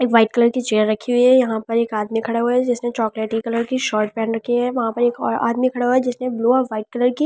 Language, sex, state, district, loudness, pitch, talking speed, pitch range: Hindi, female, Delhi, New Delhi, -19 LUFS, 235 Hz, 315 wpm, 225-250 Hz